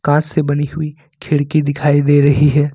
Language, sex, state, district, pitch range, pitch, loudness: Hindi, male, Jharkhand, Ranchi, 145-150 Hz, 145 Hz, -14 LUFS